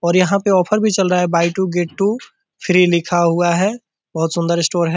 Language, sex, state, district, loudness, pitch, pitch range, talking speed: Hindi, male, Bihar, Purnia, -16 LUFS, 180 Hz, 170-195 Hz, 255 wpm